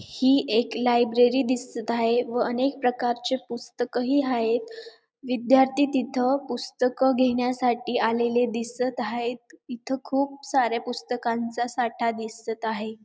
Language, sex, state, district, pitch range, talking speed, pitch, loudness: Marathi, female, Maharashtra, Dhule, 235-260 Hz, 110 wpm, 245 Hz, -25 LUFS